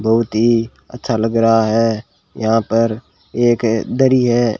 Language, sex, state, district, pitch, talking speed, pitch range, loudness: Hindi, male, Rajasthan, Bikaner, 115 Hz, 145 wpm, 110-120 Hz, -16 LUFS